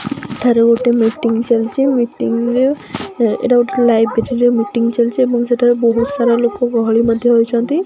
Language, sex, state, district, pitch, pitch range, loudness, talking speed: Odia, female, Odisha, Khordha, 235 Hz, 230-245 Hz, -14 LUFS, 160 wpm